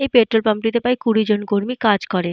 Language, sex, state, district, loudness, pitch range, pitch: Bengali, female, Jharkhand, Jamtara, -18 LUFS, 205-240 Hz, 225 Hz